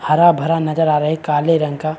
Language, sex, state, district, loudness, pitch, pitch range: Hindi, male, Chhattisgarh, Bilaspur, -16 LUFS, 155 Hz, 150-165 Hz